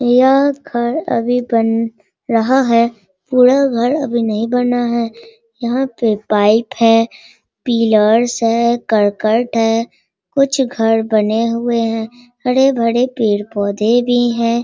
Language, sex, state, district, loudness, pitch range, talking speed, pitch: Hindi, female, Bihar, Sitamarhi, -15 LUFS, 225-245 Hz, 145 wpm, 235 Hz